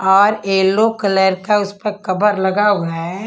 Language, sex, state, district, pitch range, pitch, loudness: Hindi, female, Punjab, Kapurthala, 190-210 Hz, 200 Hz, -16 LUFS